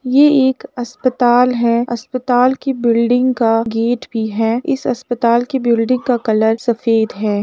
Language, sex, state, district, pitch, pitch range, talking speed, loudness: Hindi, female, Uttar Pradesh, Jalaun, 240 Hz, 230-255 Hz, 145 wpm, -15 LUFS